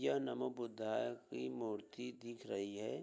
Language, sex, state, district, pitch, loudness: Hindi, male, Uttar Pradesh, Budaun, 105 Hz, -44 LUFS